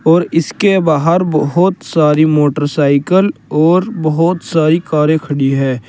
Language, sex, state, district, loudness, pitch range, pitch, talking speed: Hindi, male, Uttar Pradesh, Saharanpur, -13 LUFS, 150-175 Hz, 160 Hz, 120 wpm